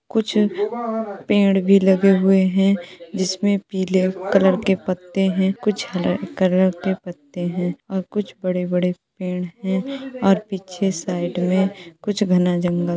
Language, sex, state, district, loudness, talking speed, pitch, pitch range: Hindi, female, Uttar Pradesh, Jalaun, -20 LUFS, 145 wpm, 190 Hz, 180-195 Hz